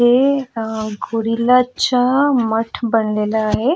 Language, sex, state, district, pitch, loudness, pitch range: Marathi, female, Goa, North and South Goa, 235 Hz, -17 LUFS, 225-250 Hz